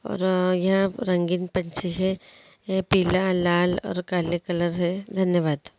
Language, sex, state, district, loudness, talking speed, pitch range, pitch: Hindi, female, Andhra Pradesh, Guntur, -24 LUFS, 135 wpm, 175-190 Hz, 180 Hz